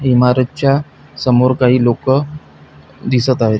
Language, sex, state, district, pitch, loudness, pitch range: Marathi, male, Maharashtra, Pune, 130 Hz, -14 LUFS, 125-135 Hz